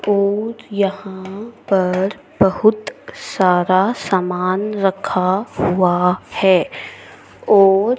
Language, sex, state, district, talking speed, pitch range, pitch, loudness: Hindi, female, Haryana, Jhajjar, 75 wpm, 185-205 Hz, 195 Hz, -17 LUFS